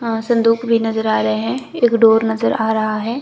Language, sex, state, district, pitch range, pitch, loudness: Hindi, female, Himachal Pradesh, Shimla, 220-230 Hz, 225 Hz, -16 LUFS